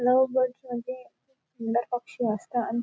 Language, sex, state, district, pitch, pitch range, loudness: Marathi, female, Maharashtra, Nagpur, 245 Hz, 235-255 Hz, -28 LUFS